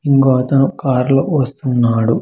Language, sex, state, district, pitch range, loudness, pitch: Telugu, male, Andhra Pradesh, Sri Satya Sai, 125-135 Hz, -14 LUFS, 135 Hz